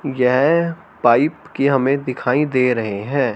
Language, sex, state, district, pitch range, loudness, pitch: Hindi, male, Haryana, Charkhi Dadri, 125-140 Hz, -18 LUFS, 135 Hz